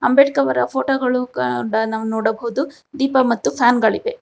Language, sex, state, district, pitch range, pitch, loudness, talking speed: Kannada, female, Karnataka, Bangalore, 220-270 Hz, 250 Hz, -18 LUFS, 130 wpm